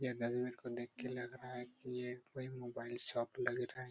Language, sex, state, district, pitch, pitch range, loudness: Hindi, male, Bihar, Araria, 125 Hz, 120-125 Hz, -43 LUFS